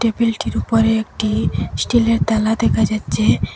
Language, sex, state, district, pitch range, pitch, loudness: Bengali, female, Assam, Hailakandi, 220-230 Hz, 225 Hz, -17 LUFS